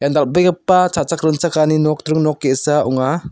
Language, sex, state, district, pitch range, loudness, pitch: Garo, male, Meghalaya, South Garo Hills, 150-170 Hz, -16 LUFS, 155 Hz